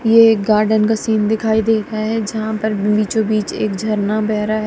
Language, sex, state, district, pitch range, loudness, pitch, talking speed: Hindi, female, Punjab, Kapurthala, 215-220 Hz, -16 LUFS, 215 Hz, 205 wpm